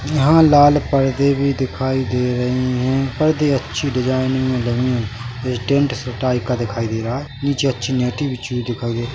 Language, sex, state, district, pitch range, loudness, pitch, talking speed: Hindi, male, Chhattisgarh, Bilaspur, 125-140 Hz, -18 LUFS, 130 Hz, 210 wpm